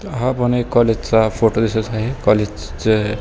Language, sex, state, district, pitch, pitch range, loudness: Marathi, male, Maharashtra, Pune, 110 Hz, 105-120 Hz, -17 LUFS